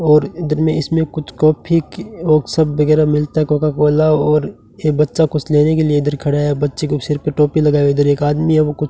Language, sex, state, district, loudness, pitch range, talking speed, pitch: Hindi, male, Rajasthan, Bikaner, -15 LUFS, 150-155 Hz, 255 wpm, 150 Hz